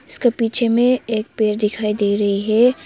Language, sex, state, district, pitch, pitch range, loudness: Hindi, female, Arunachal Pradesh, Lower Dibang Valley, 225 Hz, 210-240 Hz, -17 LUFS